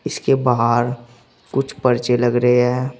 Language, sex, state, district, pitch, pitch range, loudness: Hindi, male, Uttar Pradesh, Saharanpur, 125 Hz, 120-130 Hz, -18 LUFS